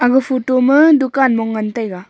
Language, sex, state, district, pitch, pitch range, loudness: Wancho, female, Arunachal Pradesh, Longding, 255 Hz, 225-265 Hz, -14 LUFS